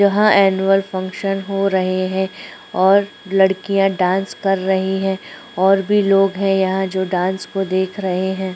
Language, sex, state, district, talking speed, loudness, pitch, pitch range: Hindi, female, Chhattisgarh, Korba, 170 wpm, -17 LUFS, 190 Hz, 190-195 Hz